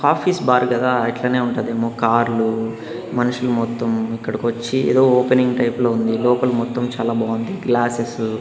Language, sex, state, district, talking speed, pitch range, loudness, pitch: Telugu, male, Andhra Pradesh, Annamaya, 150 wpm, 115-125 Hz, -19 LUFS, 120 Hz